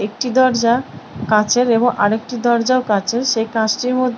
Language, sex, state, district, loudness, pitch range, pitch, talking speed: Bengali, female, West Bengal, Purulia, -16 LUFS, 220-250 Hz, 235 Hz, 155 wpm